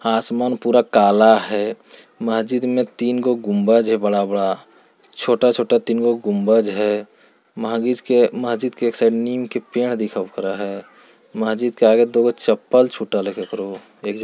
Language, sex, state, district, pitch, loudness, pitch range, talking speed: Hindi, male, Bihar, Jamui, 115 Hz, -18 LUFS, 105-120 Hz, 145 wpm